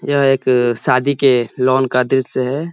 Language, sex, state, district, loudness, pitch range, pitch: Hindi, male, Uttar Pradesh, Ghazipur, -15 LUFS, 125-135 Hz, 130 Hz